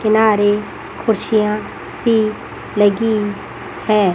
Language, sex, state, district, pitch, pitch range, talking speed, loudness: Hindi, female, Chandigarh, Chandigarh, 215 Hz, 205-220 Hz, 70 wpm, -17 LUFS